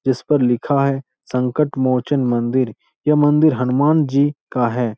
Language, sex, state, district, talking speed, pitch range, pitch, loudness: Hindi, male, Bihar, Supaul, 130 wpm, 125-145 Hz, 130 Hz, -18 LUFS